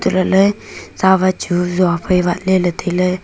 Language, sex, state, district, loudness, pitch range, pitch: Wancho, female, Arunachal Pradesh, Longding, -15 LUFS, 180-190 Hz, 185 Hz